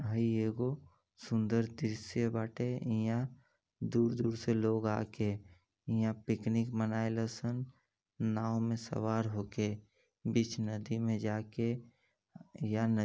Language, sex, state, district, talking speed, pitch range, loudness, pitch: Bhojpuri, male, Uttar Pradesh, Gorakhpur, 110 wpm, 110-115 Hz, -36 LUFS, 115 Hz